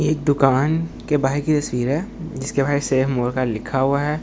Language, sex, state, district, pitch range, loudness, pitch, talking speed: Hindi, male, Delhi, New Delhi, 130-150 Hz, -20 LUFS, 140 Hz, 240 wpm